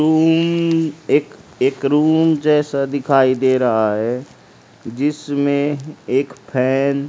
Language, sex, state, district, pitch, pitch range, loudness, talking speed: Hindi, male, Haryana, Rohtak, 140 Hz, 130-155 Hz, -17 LUFS, 110 wpm